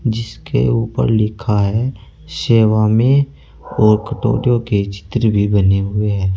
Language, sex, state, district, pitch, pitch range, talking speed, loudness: Hindi, male, Uttar Pradesh, Saharanpur, 110 Hz, 100-115 Hz, 130 wpm, -16 LUFS